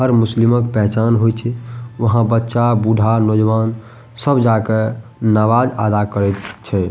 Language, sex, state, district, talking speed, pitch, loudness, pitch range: Maithili, male, Bihar, Madhepura, 140 wpm, 115 Hz, -16 LUFS, 110-120 Hz